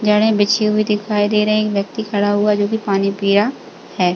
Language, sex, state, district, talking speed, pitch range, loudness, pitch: Hindi, female, Uttar Pradesh, Jalaun, 215 wpm, 205-215 Hz, -16 LUFS, 210 Hz